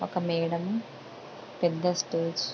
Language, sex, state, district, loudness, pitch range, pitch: Telugu, female, Andhra Pradesh, Krishna, -29 LUFS, 165-180 Hz, 175 Hz